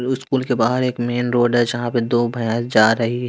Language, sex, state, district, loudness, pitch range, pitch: Hindi, male, Bihar, West Champaran, -18 LUFS, 120-125 Hz, 120 Hz